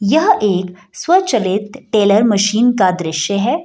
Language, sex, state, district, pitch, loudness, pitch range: Hindi, female, Bihar, Jahanabad, 205 Hz, -14 LUFS, 190-230 Hz